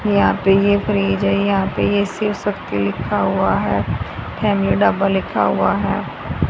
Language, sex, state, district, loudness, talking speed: Hindi, female, Haryana, Rohtak, -18 LUFS, 165 wpm